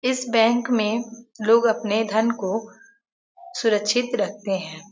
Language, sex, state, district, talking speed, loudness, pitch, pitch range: Hindi, female, Uttar Pradesh, Varanasi, 120 wpm, -22 LUFS, 225 Hz, 215-240 Hz